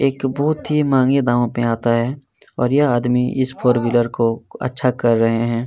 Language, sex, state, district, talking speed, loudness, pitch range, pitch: Hindi, male, Chhattisgarh, Kabirdham, 200 wpm, -18 LUFS, 115-135 Hz, 125 Hz